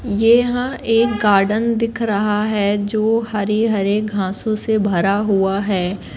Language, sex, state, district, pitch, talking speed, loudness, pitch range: Hindi, female, Madhya Pradesh, Katni, 210 Hz, 145 wpm, -17 LUFS, 200-225 Hz